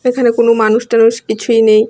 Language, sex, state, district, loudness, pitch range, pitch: Bengali, female, Tripura, West Tripura, -11 LUFS, 220-235 Hz, 230 Hz